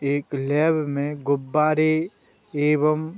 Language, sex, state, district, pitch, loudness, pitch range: Hindi, male, Uttar Pradesh, Budaun, 150 Hz, -22 LUFS, 140-155 Hz